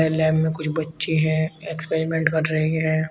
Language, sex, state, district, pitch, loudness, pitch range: Hindi, male, Uttar Pradesh, Shamli, 160 Hz, -22 LUFS, 155-160 Hz